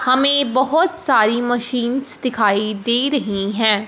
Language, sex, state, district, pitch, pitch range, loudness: Hindi, female, Punjab, Fazilka, 245 Hz, 215-270 Hz, -16 LUFS